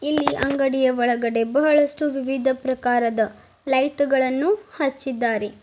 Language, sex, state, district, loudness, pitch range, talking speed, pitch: Kannada, female, Karnataka, Bidar, -21 LUFS, 245-285 Hz, 85 wpm, 265 Hz